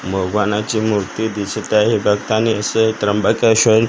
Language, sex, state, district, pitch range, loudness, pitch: Marathi, male, Maharashtra, Gondia, 105-110 Hz, -16 LUFS, 105 Hz